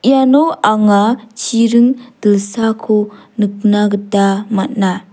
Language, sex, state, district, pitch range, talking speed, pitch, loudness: Garo, female, Meghalaya, South Garo Hills, 205-235 Hz, 80 wpm, 210 Hz, -13 LUFS